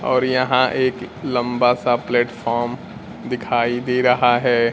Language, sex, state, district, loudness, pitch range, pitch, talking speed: Hindi, male, Bihar, Kaimur, -19 LUFS, 120-125 Hz, 125 Hz, 125 wpm